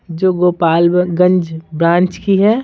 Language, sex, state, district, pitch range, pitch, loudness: Hindi, female, Bihar, Patna, 170-185 Hz, 180 Hz, -13 LUFS